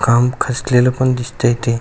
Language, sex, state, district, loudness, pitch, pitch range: Marathi, male, Maharashtra, Aurangabad, -16 LUFS, 125 Hz, 120-130 Hz